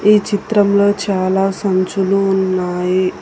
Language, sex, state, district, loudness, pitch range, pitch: Telugu, female, Telangana, Hyderabad, -15 LUFS, 185-200 Hz, 195 Hz